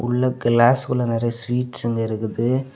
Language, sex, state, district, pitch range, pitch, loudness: Tamil, male, Tamil Nadu, Kanyakumari, 115-125 Hz, 120 Hz, -20 LUFS